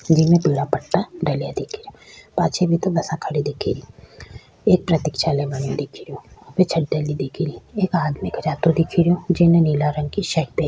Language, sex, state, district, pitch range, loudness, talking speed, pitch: Rajasthani, female, Rajasthan, Churu, 150-175 Hz, -20 LUFS, 190 wpm, 165 Hz